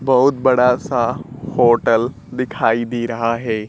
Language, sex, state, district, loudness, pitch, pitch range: Hindi, male, Bihar, Kaimur, -17 LUFS, 120 Hz, 115-125 Hz